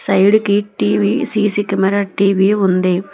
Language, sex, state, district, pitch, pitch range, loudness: Telugu, female, Telangana, Hyderabad, 200 Hz, 195-205 Hz, -15 LUFS